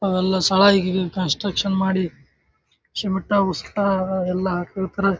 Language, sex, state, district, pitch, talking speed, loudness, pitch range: Kannada, male, Karnataka, Bijapur, 190 Hz, 115 wpm, -21 LUFS, 185-195 Hz